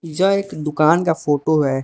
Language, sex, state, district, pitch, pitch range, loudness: Hindi, male, Arunachal Pradesh, Lower Dibang Valley, 155 Hz, 150-170 Hz, -18 LUFS